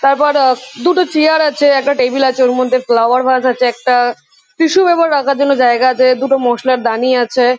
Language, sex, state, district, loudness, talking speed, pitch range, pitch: Bengali, female, West Bengal, Kolkata, -12 LUFS, 200 wpm, 250-285 Hz, 260 Hz